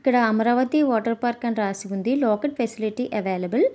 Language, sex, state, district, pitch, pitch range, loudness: Telugu, female, Andhra Pradesh, Visakhapatnam, 235 Hz, 215-255 Hz, -23 LUFS